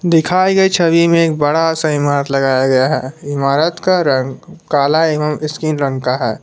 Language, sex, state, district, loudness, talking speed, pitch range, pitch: Hindi, male, Jharkhand, Palamu, -14 LUFS, 185 wpm, 140-170 Hz, 155 Hz